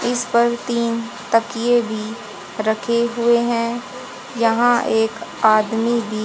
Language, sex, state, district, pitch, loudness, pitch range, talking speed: Hindi, female, Haryana, Jhajjar, 235 Hz, -19 LUFS, 220-240 Hz, 115 wpm